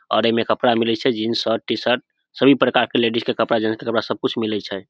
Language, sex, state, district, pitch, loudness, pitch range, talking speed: Maithili, male, Bihar, Samastipur, 115 Hz, -19 LUFS, 110-120 Hz, 255 wpm